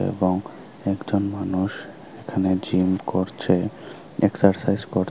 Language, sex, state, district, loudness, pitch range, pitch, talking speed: Bengali, male, Tripura, Unakoti, -23 LUFS, 95-100 Hz, 95 Hz, 95 wpm